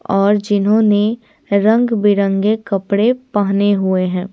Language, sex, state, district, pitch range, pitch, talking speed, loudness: Hindi, female, Bihar, Patna, 200-220 Hz, 205 Hz, 95 wpm, -15 LUFS